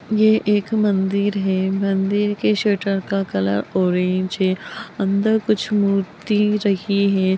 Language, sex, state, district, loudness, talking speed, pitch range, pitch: Magahi, female, Bihar, Gaya, -19 LUFS, 130 wpm, 190-210 Hz, 200 Hz